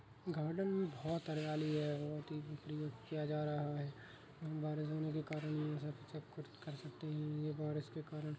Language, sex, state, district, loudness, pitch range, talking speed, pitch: Hindi, male, Uttar Pradesh, Jyotiba Phule Nagar, -43 LUFS, 150-155 Hz, 185 wpm, 150 Hz